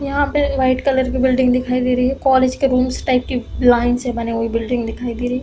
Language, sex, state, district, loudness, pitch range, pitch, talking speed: Hindi, female, Uttar Pradesh, Hamirpur, -17 LUFS, 245-260 Hz, 255 Hz, 265 wpm